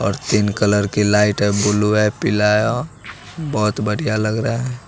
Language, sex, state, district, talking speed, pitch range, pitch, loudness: Hindi, male, Bihar, West Champaran, 195 wpm, 105-115 Hz, 105 Hz, -18 LUFS